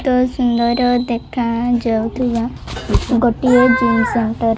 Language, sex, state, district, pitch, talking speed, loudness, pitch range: Odia, female, Odisha, Malkangiri, 240 Hz, 105 wpm, -16 LUFS, 235-250 Hz